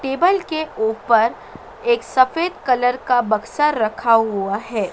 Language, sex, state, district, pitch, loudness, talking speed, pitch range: Hindi, female, Madhya Pradesh, Dhar, 245 Hz, -18 LUFS, 135 wpm, 220-310 Hz